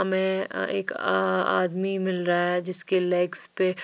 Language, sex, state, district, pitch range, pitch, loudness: Hindi, female, Chhattisgarh, Raipur, 175-190 Hz, 185 Hz, -20 LUFS